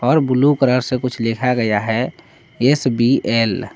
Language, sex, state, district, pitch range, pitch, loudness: Hindi, male, Jharkhand, Palamu, 115-130 Hz, 125 Hz, -17 LUFS